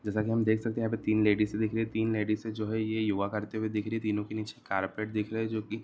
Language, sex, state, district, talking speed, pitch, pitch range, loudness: Marwari, male, Rajasthan, Nagaur, 330 wpm, 110 Hz, 105-110 Hz, -31 LUFS